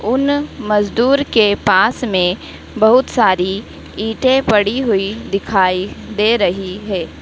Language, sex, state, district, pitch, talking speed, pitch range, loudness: Hindi, female, Madhya Pradesh, Dhar, 215 Hz, 115 wpm, 195-245 Hz, -15 LUFS